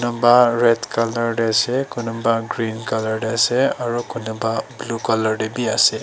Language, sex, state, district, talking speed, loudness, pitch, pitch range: Nagamese, male, Nagaland, Dimapur, 170 wpm, -19 LUFS, 115 Hz, 110-120 Hz